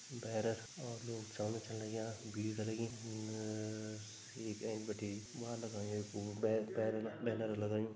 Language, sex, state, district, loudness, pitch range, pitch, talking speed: Garhwali, male, Uttarakhand, Tehri Garhwal, -42 LUFS, 110-115 Hz, 110 Hz, 135 wpm